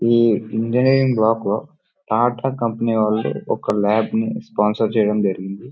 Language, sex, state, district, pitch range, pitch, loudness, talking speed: Telugu, male, Karnataka, Bellary, 110-125 Hz, 115 Hz, -19 LUFS, 115 wpm